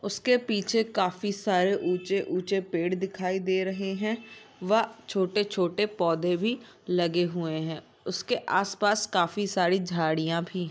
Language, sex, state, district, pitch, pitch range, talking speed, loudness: Hindi, female, Uttarakhand, Tehri Garhwal, 190 Hz, 175-210 Hz, 135 wpm, -28 LUFS